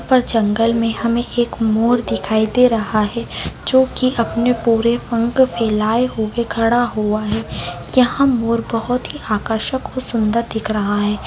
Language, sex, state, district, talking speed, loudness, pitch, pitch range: Hindi, female, Bihar, Bhagalpur, 160 wpm, -17 LUFS, 230 Hz, 220-245 Hz